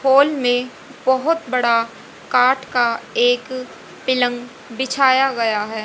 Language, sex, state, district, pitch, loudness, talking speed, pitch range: Hindi, female, Haryana, Jhajjar, 255 Hz, -18 LUFS, 115 wpm, 240-270 Hz